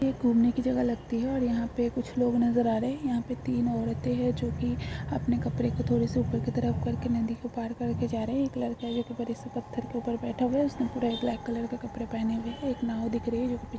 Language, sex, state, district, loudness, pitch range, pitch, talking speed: Hindi, female, Jharkhand, Sahebganj, -30 LUFS, 215-245 Hz, 235 Hz, 275 wpm